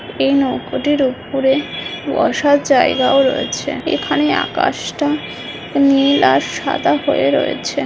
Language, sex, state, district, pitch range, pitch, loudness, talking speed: Bengali, female, West Bengal, Jhargram, 270-285 Hz, 275 Hz, -16 LUFS, 100 wpm